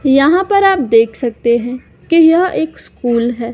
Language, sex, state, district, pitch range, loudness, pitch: Hindi, female, Madhya Pradesh, Umaria, 235-330 Hz, -13 LUFS, 245 Hz